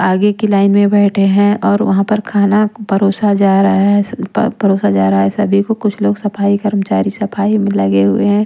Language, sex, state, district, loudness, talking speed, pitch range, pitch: Hindi, female, Punjab, Pathankot, -13 LUFS, 205 wpm, 195-205 Hz, 200 Hz